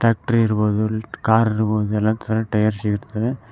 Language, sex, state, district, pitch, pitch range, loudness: Kannada, male, Karnataka, Koppal, 110 Hz, 105-110 Hz, -20 LUFS